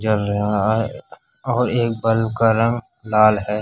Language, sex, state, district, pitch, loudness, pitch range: Hindi, male, Bihar, Kishanganj, 110 Hz, -19 LUFS, 105-115 Hz